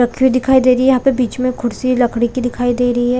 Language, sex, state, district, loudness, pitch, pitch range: Hindi, female, Chhattisgarh, Balrampur, -15 LUFS, 250 Hz, 245-255 Hz